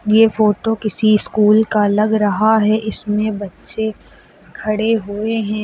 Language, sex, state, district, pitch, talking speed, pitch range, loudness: Hindi, female, Uttar Pradesh, Lucknow, 215 Hz, 140 wpm, 210-220 Hz, -16 LUFS